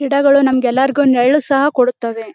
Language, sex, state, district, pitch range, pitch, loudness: Kannada, female, Karnataka, Bellary, 250-280 Hz, 270 Hz, -13 LUFS